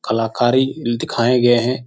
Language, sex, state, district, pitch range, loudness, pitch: Hindi, male, Bihar, Jahanabad, 120-125 Hz, -17 LUFS, 120 Hz